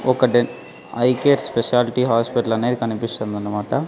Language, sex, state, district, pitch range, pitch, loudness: Telugu, male, Andhra Pradesh, Sri Satya Sai, 115-125 Hz, 120 Hz, -20 LUFS